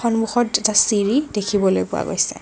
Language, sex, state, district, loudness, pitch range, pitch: Assamese, female, Assam, Kamrup Metropolitan, -18 LUFS, 205-235 Hz, 215 Hz